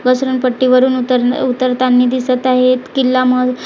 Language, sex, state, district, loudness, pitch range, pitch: Marathi, female, Maharashtra, Gondia, -13 LUFS, 250-255 Hz, 255 Hz